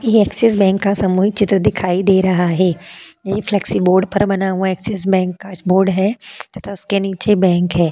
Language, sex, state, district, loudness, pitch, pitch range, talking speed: Hindi, female, Uttar Pradesh, Jalaun, -15 LUFS, 195 Hz, 185-200 Hz, 195 wpm